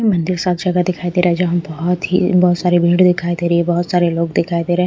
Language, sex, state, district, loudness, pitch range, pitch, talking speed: Hindi, female, Punjab, Pathankot, -16 LUFS, 175-180 Hz, 175 Hz, 305 wpm